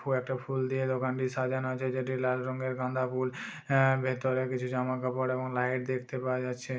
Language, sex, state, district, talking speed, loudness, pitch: Bajjika, male, Bihar, Vaishali, 185 wpm, -31 LUFS, 130 Hz